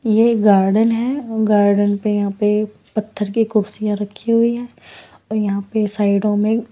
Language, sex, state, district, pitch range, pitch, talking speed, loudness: Hindi, female, Punjab, Pathankot, 205-225 Hz, 210 Hz, 160 wpm, -17 LUFS